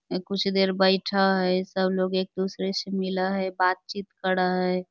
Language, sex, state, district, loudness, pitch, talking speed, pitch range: Magahi, female, Bihar, Lakhisarai, -25 LUFS, 190 Hz, 185 wpm, 185-195 Hz